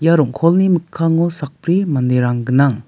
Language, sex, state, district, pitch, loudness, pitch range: Garo, male, Meghalaya, West Garo Hills, 155 Hz, -16 LUFS, 130-170 Hz